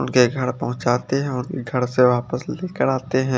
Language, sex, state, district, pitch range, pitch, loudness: Hindi, male, Chandigarh, Chandigarh, 125-130 Hz, 125 Hz, -21 LUFS